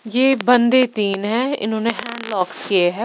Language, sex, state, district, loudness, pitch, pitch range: Hindi, female, Punjab, Pathankot, -18 LUFS, 230 Hz, 205-245 Hz